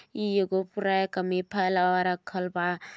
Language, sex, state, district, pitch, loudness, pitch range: Bhojpuri, female, Uttar Pradesh, Gorakhpur, 185 Hz, -27 LUFS, 180-195 Hz